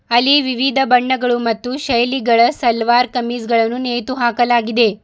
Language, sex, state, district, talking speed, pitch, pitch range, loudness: Kannada, female, Karnataka, Bidar, 105 wpm, 240 Hz, 235-255 Hz, -15 LUFS